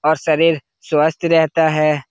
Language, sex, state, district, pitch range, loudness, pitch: Hindi, male, Bihar, Jahanabad, 155-165 Hz, -16 LUFS, 155 Hz